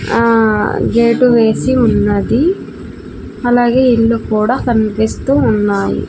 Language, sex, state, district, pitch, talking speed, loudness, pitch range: Telugu, female, Andhra Pradesh, Sri Satya Sai, 230 Hz, 90 wpm, -12 LUFS, 215-245 Hz